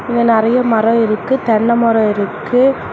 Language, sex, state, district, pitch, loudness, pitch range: Tamil, female, Tamil Nadu, Namakkal, 230 Hz, -13 LUFS, 220-240 Hz